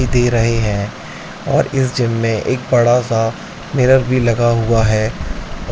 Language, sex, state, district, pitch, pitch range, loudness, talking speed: Hindi, male, Uttar Pradesh, Etah, 115 Hz, 115-125 Hz, -15 LUFS, 155 wpm